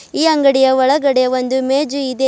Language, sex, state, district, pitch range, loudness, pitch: Kannada, female, Karnataka, Bidar, 260-280 Hz, -14 LUFS, 265 Hz